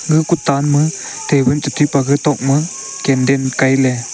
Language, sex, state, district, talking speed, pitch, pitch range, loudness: Wancho, male, Arunachal Pradesh, Longding, 190 wpm, 140 Hz, 135-155 Hz, -15 LUFS